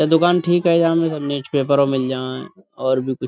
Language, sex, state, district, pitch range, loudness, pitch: Urdu, male, Uttar Pradesh, Budaun, 130-170 Hz, -18 LUFS, 145 Hz